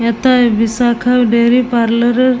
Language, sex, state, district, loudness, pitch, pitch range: Bengali, male, West Bengal, Jalpaiguri, -12 LUFS, 240 Hz, 235-250 Hz